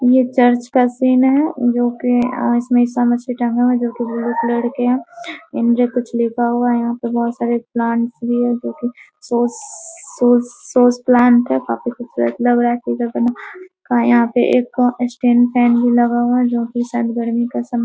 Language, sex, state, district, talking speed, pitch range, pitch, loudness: Hindi, female, Bihar, Muzaffarpur, 165 wpm, 235-245 Hz, 240 Hz, -16 LUFS